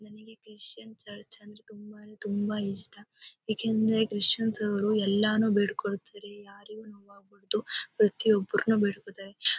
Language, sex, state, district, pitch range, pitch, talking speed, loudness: Kannada, female, Karnataka, Mysore, 205-215 Hz, 210 Hz, 110 wpm, -27 LUFS